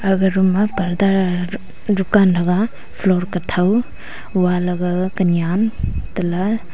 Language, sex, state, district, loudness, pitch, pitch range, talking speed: Wancho, female, Arunachal Pradesh, Longding, -18 LUFS, 190 Hz, 180-200 Hz, 100 wpm